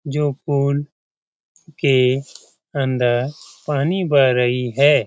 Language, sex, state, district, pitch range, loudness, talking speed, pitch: Hindi, male, Bihar, Jamui, 130-145 Hz, -19 LUFS, 95 wpm, 140 Hz